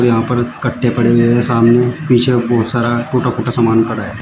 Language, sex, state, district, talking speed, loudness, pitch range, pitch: Hindi, male, Uttar Pradesh, Shamli, 215 wpm, -13 LUFS, 115-120 Hz, 120 Hz